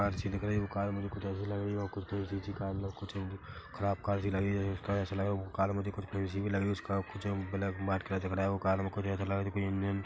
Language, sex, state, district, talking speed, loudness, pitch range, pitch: Hindi, male, Chhattisgarh, Korba, 250 wpm, -35 LUFS, 95-100 Hz, 100 Hz